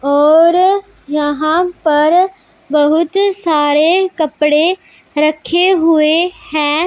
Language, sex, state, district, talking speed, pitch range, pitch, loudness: Hindi, female, Punjab, Pathankot, 80 wpm, 300-360 Hz, 320 Hz, -13 LUFS